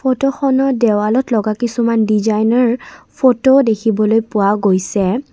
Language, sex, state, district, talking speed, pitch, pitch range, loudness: Assamese, female, Assam, Kamrup Metropolitan, 100 wpm, 230 Hz, 215-260 Hz, -14 LUFS